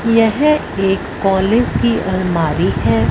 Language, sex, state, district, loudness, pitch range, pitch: Hindi, female, Punjab, Fazilka, -15 LUFS, 170-230 Hz, 195 Hz